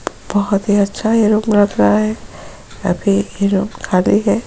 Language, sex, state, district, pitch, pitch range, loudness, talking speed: Hindi, female, Chhattisgarh, Sukma, 200 Hz, 185-210 Hz, -15 LUFS, 190 wpm